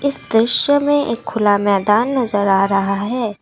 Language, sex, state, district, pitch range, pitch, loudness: Hindi, female, Assam, Kamrup Metropolitan, 200-255 Hz, 220 Hz, -16 LUFS